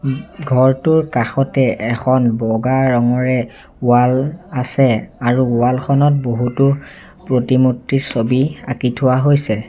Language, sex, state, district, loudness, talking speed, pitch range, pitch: Assamese, male, Assam, Sonitpur, -16 LUFS, 100 wpm, 120-135 Hz, 130 Hz